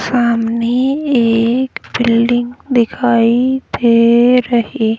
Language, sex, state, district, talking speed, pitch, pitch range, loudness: Hindi, female, Haryana, Rohtak, 85 wpm, 240 Hz, 230-250 Hz, -13 LUFS